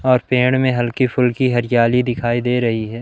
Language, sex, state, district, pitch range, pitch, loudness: Hindi, male, Madhya Pradesh, Umaria, 120-125 Hz, 125 Hz, -17 LUFS